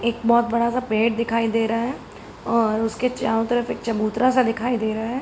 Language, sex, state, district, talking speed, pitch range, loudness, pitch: Hindi, female, Uttar Pradesh, Hamirpur, 230 wpm, 225-240 Hz, -21 LUFS, 230 Hz